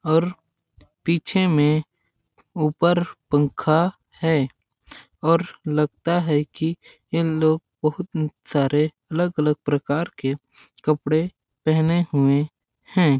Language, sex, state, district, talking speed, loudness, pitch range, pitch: Hindi, male, Chhattisgarh, Balrampur, 95 wpm, -22 LUFS, 145-170 Hz, 155 Hz